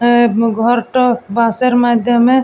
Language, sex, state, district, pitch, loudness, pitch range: Bengali, female, West Bengal, Jalpaiguri, 240 Hz, -13 LUFS, 230-245 Hz